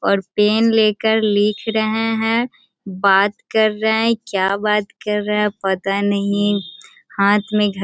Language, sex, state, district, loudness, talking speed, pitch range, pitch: Hindi, female, Bihar, Sitamarhi, -17 LUFS, 145 wpm, 200-220 Hz, 210 Hz